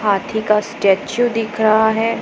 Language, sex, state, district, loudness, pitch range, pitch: Hindi, female, Punjab, Pathankot, -16 LUFS, 210-225 Hz, 220 Hz